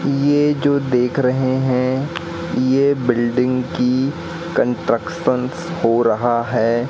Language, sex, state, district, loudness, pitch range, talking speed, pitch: Hindi, male, Madhya Pradesh, Katni, -18 LUFS, 125-140 Hz, 105 wpm, 130 Hz